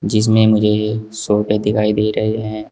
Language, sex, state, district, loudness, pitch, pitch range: Hindi, male, Uttar Pradesh, Saharanpur, -16 LUFS, 110 Hz, 105-110 Hz